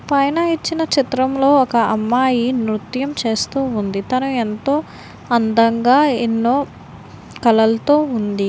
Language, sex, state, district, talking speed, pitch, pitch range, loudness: Telugu, female, Andhra Pradesh, Visakhapatnam, 100 wpm, 250 Hz, 225-275 Hz, -17 LUFS